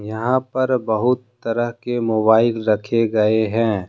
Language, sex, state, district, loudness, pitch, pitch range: Hindi, male, Jharkhand, Deoghar, -19 LUFS, 115 Hz, 110-120 Hz